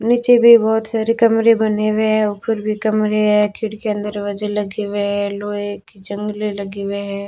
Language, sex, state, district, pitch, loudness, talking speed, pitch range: Hindi, female, Rajasthan, Bikaner, 210 Hz, -17 LUFS, 190 wpm, 205-220 Hz